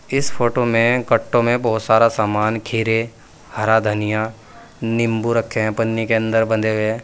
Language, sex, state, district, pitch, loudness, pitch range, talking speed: Hindi, male, Uttar Pradesh, Saharanpur, 115 Hz, -18 LUFS, 110-115 Hz, 160 wpm